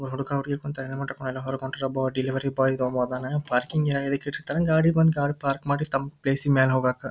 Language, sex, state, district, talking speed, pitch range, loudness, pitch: Kannada, male, Karnataka, Dharwad, 170 wpm, 130-145 Hz, -25 LUFS, 135 Hz